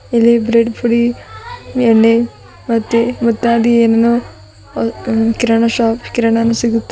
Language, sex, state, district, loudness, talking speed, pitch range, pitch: Kannada, female, Karnataka, Bidar, -13 LUFS, 115 wpm, 225-235 Hz, 230 Hz